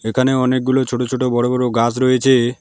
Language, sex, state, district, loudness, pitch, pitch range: Bengali, male, West Bengal, Alipurduar, -16 LUFS, 125 Hz, 120-130 Hz